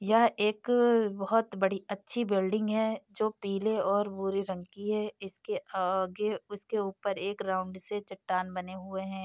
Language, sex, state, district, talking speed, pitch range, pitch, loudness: Hindi, female, Uttar Pradesh, Jyotiba Phule Nagar, 160 wpm, 190-215 Hz, 200 Hz, -31 LUFS